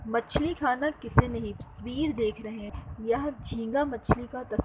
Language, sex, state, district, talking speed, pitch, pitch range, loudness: Hindi, female, Uttar Pradesh, Muzaffarnagar, 155 wpm, 245 Hz, 230-285 Hz, -30 LUFS